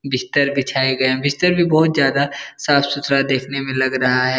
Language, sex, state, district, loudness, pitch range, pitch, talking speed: Hindi, male, Bihar, Darbhanga, -17 LUFS, 130-145 Hz, 135 Hz, 190 wpm